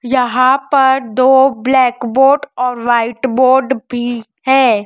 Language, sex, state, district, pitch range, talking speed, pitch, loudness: Hindi, male, Madhya Pradesh, Dhar, 245-265 Hz, 125 wpm, 255 Hz, -13 LUFS